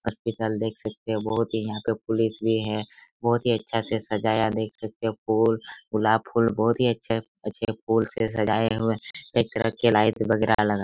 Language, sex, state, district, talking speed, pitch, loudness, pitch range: Hindi, male, Chhattisgarh, Raigarh, 200 wpm, 110 Hz, -25 LUFS, 110-115 Hz